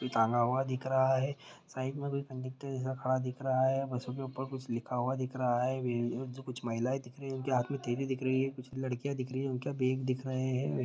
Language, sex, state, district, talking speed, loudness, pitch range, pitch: Hindi, male, Bihar, Muzaffarpur, 265 wpm, -34 LUFS, 125-135 Hz, 130 Hz